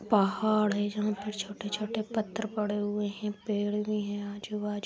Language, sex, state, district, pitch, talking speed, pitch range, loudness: Hindi, female, Bihar, Jahanabad, 210 Hz, 160 wpm, 205-215 Hz, -31 LUFS